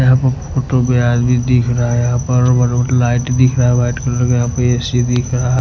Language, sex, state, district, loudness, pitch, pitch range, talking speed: Hindi, male, Himachal Pradesh, Shimla, -14 LUFS, 125 Hz, 120-125 Hz, 215 wpm